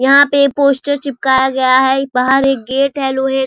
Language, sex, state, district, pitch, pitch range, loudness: Hindi, female, Bihar, Saharsa, 270 Hz, 265-280 Hz, -13 LUFS